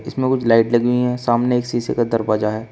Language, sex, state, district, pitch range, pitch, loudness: Hindi, male, Uttar Pradesh, Shamli, 115-125 Hz, 120 Hz, -18 LUFS